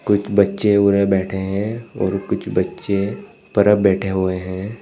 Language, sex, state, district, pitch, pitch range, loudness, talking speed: Hindi, male, Uttar Pradesh, Saharanpur, 100 Hz, 95-105 Hz, -19 LUFS, 150 wpm